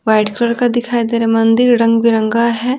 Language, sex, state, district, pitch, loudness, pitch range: Hindi, female, Bihar, Patna, 235 Hz, -13 LUFS, 225-240 Hz